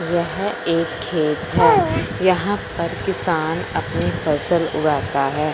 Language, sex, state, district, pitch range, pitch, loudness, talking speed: Hindi, female, Punjab, Fazilka, 150-175 Hz, 165 Hz, -20 LUFS, 120 wpm